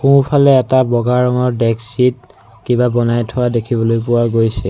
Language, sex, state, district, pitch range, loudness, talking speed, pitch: Assamese, male, Assam, Sonitpur, 115-125 Hz, -14 LUFS, 140 wpm, 120 Hz